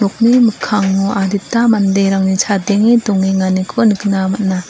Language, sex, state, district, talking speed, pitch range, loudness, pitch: Garo, female, Meghalaya, West Garo Hills, 90 wpm, 190-215 Hz, -13 LUFS, 200 Hz